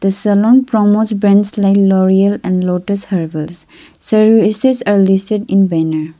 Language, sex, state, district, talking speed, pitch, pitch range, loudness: English, female, Arunachal Pradesh, Lower Dibang Valley, 135 wpm, 200 Hz, 185-210 Hz, -12 LUFS